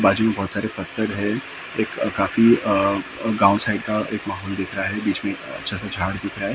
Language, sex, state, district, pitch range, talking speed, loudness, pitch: Hindi, male, Maharashtra, Mumbai Suburban, 100-105 Hz, 245 wpm, -22 LUFS, 100 Hz